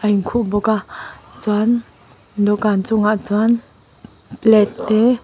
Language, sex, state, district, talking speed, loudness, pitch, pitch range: Mizo, female, Mizoram, Aizawl, 125 wpm, -17 LUFS, 215 Hz, 210-230 Hz